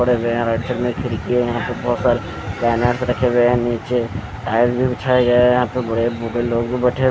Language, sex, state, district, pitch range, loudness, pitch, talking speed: Hindi, male, Chandigarh, Chandigarh, 115-125 Hz, -18 LUFS, 120 Hz, 230 wpm